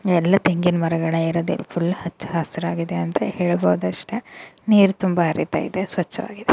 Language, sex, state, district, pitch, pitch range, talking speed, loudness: Kannada, female, Karnataka, Dakshina Kannada, 175 Hz, 165-190 Hz, 145 wpm, -21 LUFS